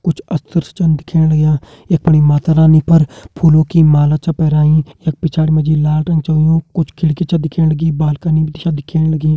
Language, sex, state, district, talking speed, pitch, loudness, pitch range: Hindi, male, Uttarakhand, Uttarkashi, 210 wpm, 160 Hz, -13 LUFS, 155-165 Hz